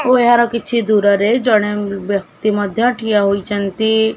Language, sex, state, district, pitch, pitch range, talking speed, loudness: Odia, female, Odisha, Khordha, 215 Hz, 205-235 Hz, 130 wpm, -15 LUFS